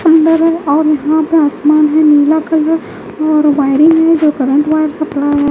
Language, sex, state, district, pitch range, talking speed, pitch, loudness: Hindi, female, Bihar, West Champaran, 295-320 Hz, 195 wpm, 310 Hz, -11 LUFS